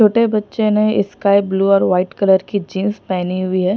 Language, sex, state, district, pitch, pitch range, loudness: Hindi, female, Punjab, Pathankot, 200 Hz, 190-210 Hz, -16 LUFS